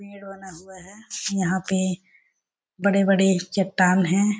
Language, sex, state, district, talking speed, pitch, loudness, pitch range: Hindi, female, Chhattisgarh, Balrampur, 120 wpm, 190 Hz, -22 LUFS, 185-200 Hz